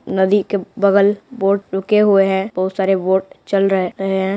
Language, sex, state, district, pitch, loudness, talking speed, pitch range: Hindi, female, Bihar, Purnia, 195 Hz, -16 LUFS, 180 wpm, 190-200 Hz